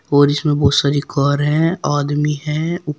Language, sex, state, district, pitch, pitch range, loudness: Hindi, female, Uttar Pradesh, Shamli, 145 Hz, 145-150 Hz, -16 LUFS